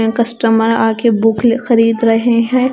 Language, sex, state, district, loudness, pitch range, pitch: Hindi, female, Punjab, Kapurthala, -12 LUFS, 225-235 Hz, 230 Hz